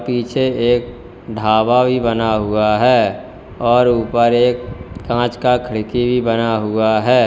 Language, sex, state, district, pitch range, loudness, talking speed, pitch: Hindi, male, Uttar Pradesh, Lalitpur, 110-125 Hz, -16 LUFS, 140 wpm, 120 Hz